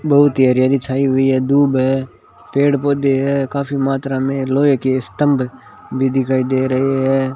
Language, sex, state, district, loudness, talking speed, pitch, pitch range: Hindi, male, Rajasthan, Bikaner, -16 LUFS, 190 wpm, 135 Hz, 130-140 Hz